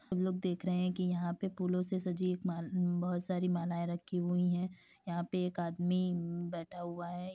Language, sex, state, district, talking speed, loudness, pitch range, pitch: Hindi, female, Uttar Pradesh, Hamirpur, 210 wpm, -36 LUFS, 175-185 Hz, 180 Hz